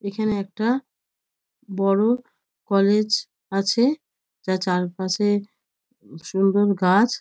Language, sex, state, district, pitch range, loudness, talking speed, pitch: Bengali, female, West Bengal, North 24 Parganas, 190-220 Hz, -22 LUFS, 75 wpm, 200 Hz